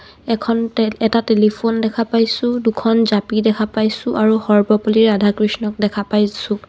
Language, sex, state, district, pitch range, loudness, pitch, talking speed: Assamese, female, Assam, Kamrup Metropolitan, 210-225 Hz, -16 LUFS, 220 Hz, 135 wpm